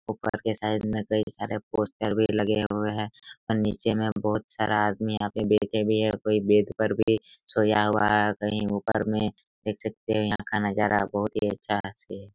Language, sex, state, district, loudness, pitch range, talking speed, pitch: Hindi, male, Chhattisgarh, Raigarh, -26 LUFS, 105-110 Hz, 200 wpm, 105 Hz